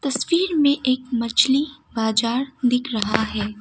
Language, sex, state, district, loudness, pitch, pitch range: Hindi, female, Assam, Kamrup Metropolitan, -21 LUFS, 250 Hz, 225-275 Hz